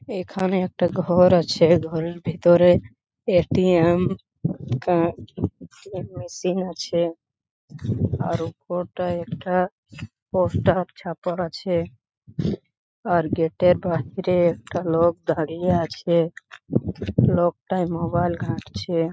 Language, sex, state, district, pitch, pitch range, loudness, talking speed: Bengali, male, West Bengal, Paschim Medinipur, 170 Hz, 160-180 Hz, -22 LUFS, 90 wpm